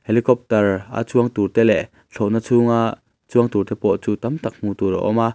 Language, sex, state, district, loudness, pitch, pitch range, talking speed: Mizo, male, Mizoram, Aizawl, -19 LUFS, 115 Hz, 105-120 Hz, 225 wpm